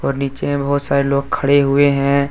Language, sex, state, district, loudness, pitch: Hindi, male, Jharkhand, Deoghar, -16 LUFS, 140 Hz